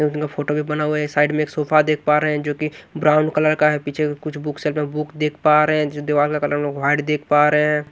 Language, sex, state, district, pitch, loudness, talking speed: Hindi, male, Maharashtra, Washim, 150 Hz, -19 LUFS, 295 wpm